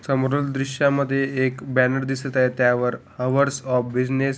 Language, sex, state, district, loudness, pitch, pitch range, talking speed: Marathi, male, Maharashtra, Pune, -22 LUFS, 135 Hz, 125-135 Hz, 165 wpm